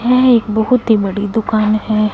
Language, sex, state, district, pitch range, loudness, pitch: Hindi, female, Punjab, Fazilka, 215-235 Hz, -14 LUFS, 220 Hz